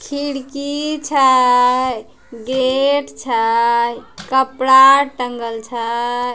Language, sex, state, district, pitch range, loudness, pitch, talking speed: Angika, female, Bihar, Begusarai, 235-275 Hz, -15 LUFS, 255 Hz, 65 wpm